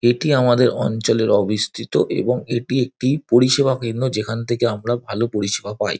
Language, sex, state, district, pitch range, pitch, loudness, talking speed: Bengali, male, West Bengal, Dakshin Dinajpur, 110-130 Hz, 120 Hz, -19 LUFS, 150 wpm